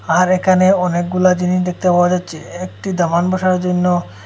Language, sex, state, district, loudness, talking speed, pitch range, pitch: Bengali, male, Assam, Hailakandi, -15 LUFS, 155 wpm, 175-185 Hz, 180 Hz